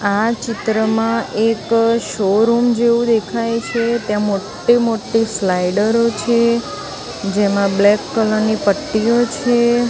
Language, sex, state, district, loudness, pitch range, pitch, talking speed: Gujarati, female, Gujarat, Gandhinagar, -16 LUFS, 210-235 Hz, 225 Hz, 110 wpm